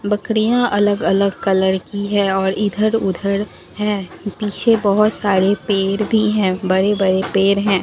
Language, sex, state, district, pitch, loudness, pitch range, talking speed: Hindi, female, Bihar, Katihar, 200 Hz, -17 LUFS, 195-210 Hz, 130 wpm